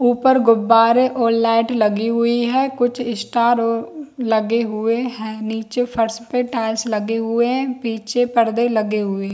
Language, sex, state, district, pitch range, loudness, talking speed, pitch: Hindi, female, Jharkhand, Jamtara, 225-245 Hz, -18 LUFS, 155 wpm, 230 Hz